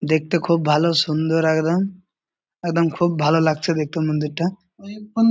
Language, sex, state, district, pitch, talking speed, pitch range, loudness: Bengali, male, West Bengal, Malda, 165 Hz, 125 wpm, 155-180 Hz, -20 LUFS